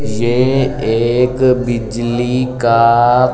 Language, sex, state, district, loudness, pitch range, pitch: Hindi, male, Delhi, New Delhi, -14 LUFS, 120-125 Hz, 120 Hz